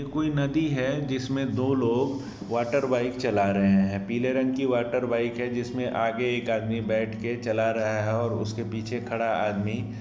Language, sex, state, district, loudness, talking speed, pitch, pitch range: Hindi, male, Bihar, Sitamarhi, -26 LUFS, 200 wpm, 120 Hz, 110-130 Hz